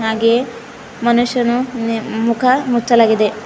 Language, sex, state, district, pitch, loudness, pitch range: Kannada, female, Karnataka, Bidar, 235 Hz, -15 LUFS, 225-245 Hz